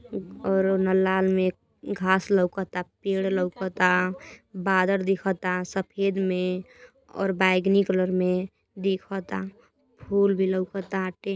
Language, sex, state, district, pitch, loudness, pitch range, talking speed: Bhojpuri, female, Uttar Pradesh, Gorakhpur, 190 Hz, -25 LUFS, 185-195 Hz, 105 wpm